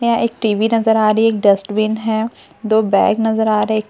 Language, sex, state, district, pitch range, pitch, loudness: Hindi, female, Bihar, Katihar, 215-225 Hz, 220 Hz, -15 LUFS